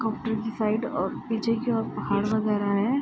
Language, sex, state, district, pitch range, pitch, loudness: Hindi, female, Bihar, Araria, 215-230 Hz, 225 Hz, -27 LUFS